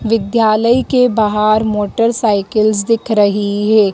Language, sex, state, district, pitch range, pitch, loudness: Hindi, female, Madhya Pradesh, Dhar, 210-230 Hz, 215 Hz, -13 LUFS